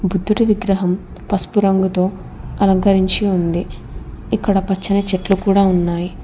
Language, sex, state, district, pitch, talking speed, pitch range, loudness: Telugu, female, Telangana, Hyderabad, 195 Hz, 105 wpm, 185-200 Hz, -17 LUFS